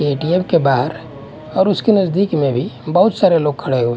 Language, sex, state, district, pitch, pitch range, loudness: Hindi, male, Haryana, Charkhi Dadri, 155 Hz, 140-185 Hz, -16 LUFS